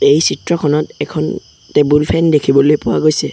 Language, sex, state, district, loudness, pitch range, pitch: Assamese, male, Assam, Sonitpur, -14 LUFS, 145-155 Hz, 150 Hz